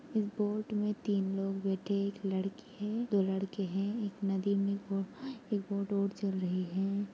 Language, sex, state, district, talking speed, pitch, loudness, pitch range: Hindi, female, Chhattisgarh, Raigarh, 195 wpm, 200 Hz, -35 LUFS, 195-210 Hz